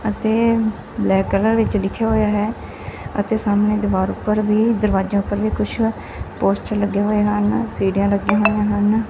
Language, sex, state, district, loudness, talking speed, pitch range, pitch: Punjabi, female, Punjab, Fazilka, -19 LUFS, 160 wpm, 200-220 Hz, 210 Hz